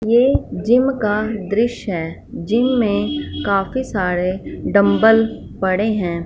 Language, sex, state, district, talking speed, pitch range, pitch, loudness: Hindi, female, Punjab, Fazilka, 115 wpm, 185-230 Hz, 210 Hz, -18 LUFS